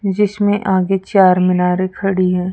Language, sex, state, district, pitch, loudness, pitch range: Hindi, female, Rajasthan, Jaipur, 190 Hz, -15 LUFS, 180-195 Hz